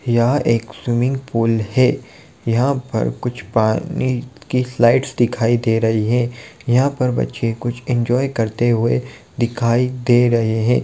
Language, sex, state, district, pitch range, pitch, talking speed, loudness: Hindi, male, Bihar, Gopalganj, 115-125 Hz, 120 Hz, 145 wpm, -18 LUFS